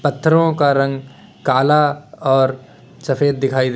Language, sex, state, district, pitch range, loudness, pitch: Hindi, male, Uttar Pradesh, Lalitpur, 135-145 Hz, -16 LUFS, 135 Hz